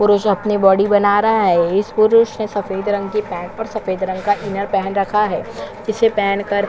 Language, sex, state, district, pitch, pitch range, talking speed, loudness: Hindi, female, Chhattisgarh, Korba, 205 Hz, 195-210 Hz, 215 wpm, -17 LUFS